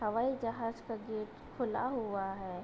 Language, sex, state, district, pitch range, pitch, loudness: Hindi, female, Uttar Pradesh, Budaun, 205-230 Hz, 220 Hz, -37 LUFS